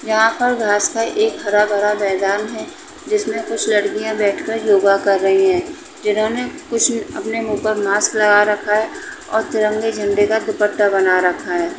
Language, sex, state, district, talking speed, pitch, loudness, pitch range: Hindi, female, Uttar Pradesh, Etah, 165 wpm, 215 Hz, -17 LUFS, 205-230 Hz